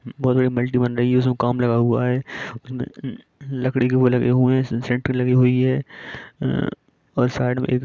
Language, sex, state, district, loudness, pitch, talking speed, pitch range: Hindi, male, Jharkhand, Sahebganj, -20 LUFS, 125 Hz, 200 wpm, 125-130 Hz